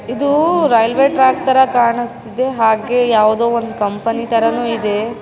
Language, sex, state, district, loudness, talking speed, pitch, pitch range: Kannada, female, Karnataka, Raichur, -14 LUFS, 115 wpm, 235 Hz, 225-260 Hz